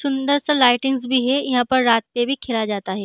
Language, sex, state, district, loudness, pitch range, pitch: Hindi, female, Bihar, Gaya, -19 LUFS, 235-270 Hz, 250 Hz